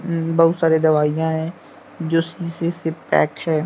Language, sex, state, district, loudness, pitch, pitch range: Hindi, male, Jharkhand, Deoghar, -19 LUFS, 165 Hz, 160-170 Hz